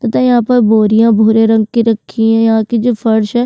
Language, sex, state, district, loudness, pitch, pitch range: Hindi, female, Uttarakhand, Tehri Garhwal, -11 LUFS, 225 Hz, 220-235 Hz